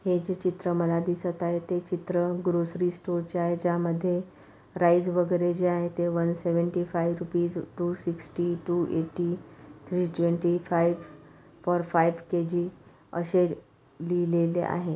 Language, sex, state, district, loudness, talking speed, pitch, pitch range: Marathi, female, Maharashtra, Pune, -28 LUFS, 135 wpm, 175 Hz, 170-175 Hz